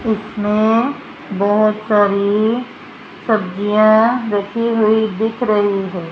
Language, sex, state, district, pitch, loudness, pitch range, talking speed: Hindi, female, Rajasthan, Jaipur, 215 Hz, -16 LUFS, 205-225 Hz, 90 wpm